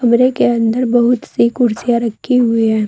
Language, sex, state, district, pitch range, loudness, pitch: Hindi, female, Uttar Pradesh, Saharanpur, 230-245 Hz, -14 LUFS, 235 Hz